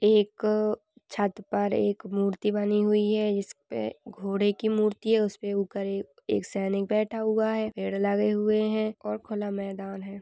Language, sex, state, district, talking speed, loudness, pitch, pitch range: Hindi, female, Chhattisgarh, Balrampur, 165 wpm, -28 LUFS, 205 Hz, 200-215 Hz